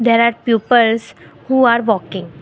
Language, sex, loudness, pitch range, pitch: English, female, -15 LUFS, 220-235 Hz, 230 Hz